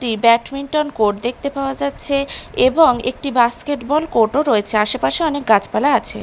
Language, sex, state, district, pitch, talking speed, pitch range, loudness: Bengali, female, Bihar, Katihar, 260 Hz, 155 wpm, 235-285 Hz, -17 LUFS